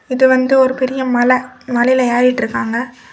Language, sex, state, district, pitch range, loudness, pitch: Tamil, female, Tamil Nadu, Kanyakumari, 245-260 Hz, -14 LUFS, 255 Hz